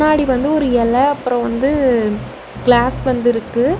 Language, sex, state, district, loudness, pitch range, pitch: Tamil, female, Tamil Nadu, Namakkal, -16 LUFS, 240-275 Hz, 250 Hz